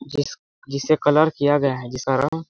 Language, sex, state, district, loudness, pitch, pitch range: Hindi, male, Chhattisgarh, Balrampur, -21 LUFS, 145 Hz, 135-155 Hz